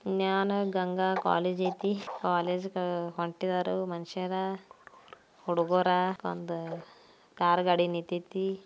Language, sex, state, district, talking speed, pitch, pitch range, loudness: Kannada, female, Karnataka, Belgaum, 75 wpm, 180 Hz, 175-190 Hz, -30 LUFS